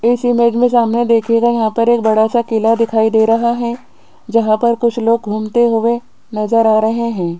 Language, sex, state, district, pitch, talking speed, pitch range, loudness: Hindi, female, Rajasthan, Jaipur, 230 Hz, 205 wpm, 220-235 Hz, -14 LUFS